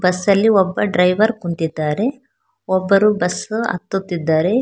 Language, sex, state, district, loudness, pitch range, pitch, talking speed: Kannada, female, Karnataka, Bangalore, -17 LUFS, 180-220 Hz, 195 Hz, 105 wpm